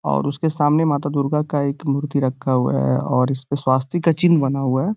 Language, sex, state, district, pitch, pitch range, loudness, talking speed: Hindi, male, Uttar Pradesh, Gorakhpur, 140 Hz, 130-150 Hz, -19 LUFS, 230 wpm